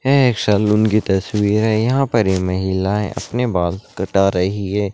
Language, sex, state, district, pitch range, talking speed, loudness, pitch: Hindi, male, Rajasthan, Churu, 95-110 Hz, 180 wpm, -17 LUFS, 105 Hz